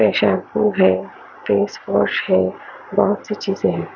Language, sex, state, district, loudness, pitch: Hindi, female, Chandigarh, Chandigarh, -19 LUFS, 200 Hz